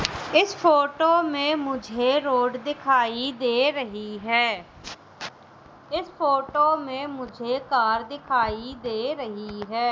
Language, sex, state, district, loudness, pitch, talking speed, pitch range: Hindi, female, Madhya Pradesh, Katni, -24 LUFS, 260 Hz, 110 wpm, 235-290 Hz